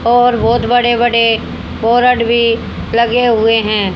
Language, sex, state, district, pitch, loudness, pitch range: Hindi, female, Haryana, Jhajjar, 235 Hz, -12 LUFS, 225-240 Hz